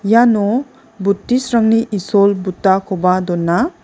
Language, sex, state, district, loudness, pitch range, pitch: Garo, female, Meghalaya, West Garo Hills, -15 LUFS, 190-235 Hz, 205 Hz